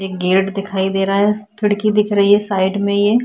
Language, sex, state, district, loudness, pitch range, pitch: Hindi, female, Chhattisgarh, Kabirdham, -16 LUFS, 195-210 Hz, 200 Hz